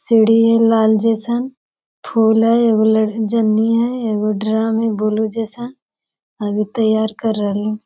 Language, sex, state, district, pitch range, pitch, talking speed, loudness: Hindi, female, Bihar, Jamui, 215-230 Hz, 220 Hz, 145 wpm, -16 LUFS